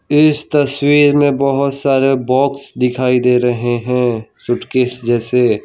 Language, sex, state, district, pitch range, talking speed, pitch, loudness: Hindi, male, Gujarat, Valsad, 125-140 Hz, 125 wpm, 130 Hz, -14 LUFS